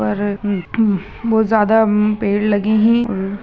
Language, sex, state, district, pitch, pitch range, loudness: Hindi, male, Bihar, Gaya, 210 Hz, 200-220 Hz, -16 LUFS